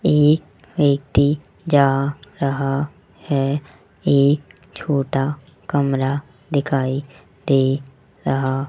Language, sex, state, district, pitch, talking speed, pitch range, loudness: Hindi, male, Rajasthan, Jaipur, 140 Hz, 75 wpm, 135-145 Hz, -20 LUFS